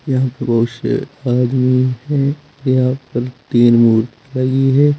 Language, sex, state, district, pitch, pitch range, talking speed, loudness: Hindi, male, Uttar Pradesh, Saharanpur, 130 Hz, 125-135 Hz, 130 wpm, -16 LUFS